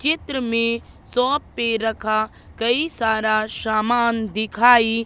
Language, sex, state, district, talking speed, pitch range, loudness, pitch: Hindi, female, Madhya Pradesh, Katni, 105 wpm, 220-240 Hz, -20 LUFS, 230 Hz